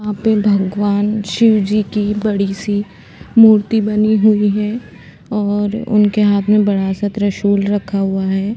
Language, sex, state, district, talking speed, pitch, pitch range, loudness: Hindi, female, Uttarakhand, Tehri Garhwal, 145 wpm, 205 Hz, 200-215 Hz, -15 LUFS